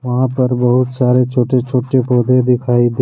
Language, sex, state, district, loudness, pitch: Hindi, male, Jharkhand, Deoghar, -14 LUFS, 125 Hz